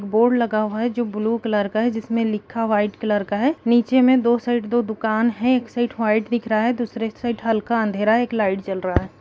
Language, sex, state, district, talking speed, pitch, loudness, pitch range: Hindi, female, Bihar, East Champaran, 245 wpm, 225 Hz, -21 LUFS, 215-240 Hz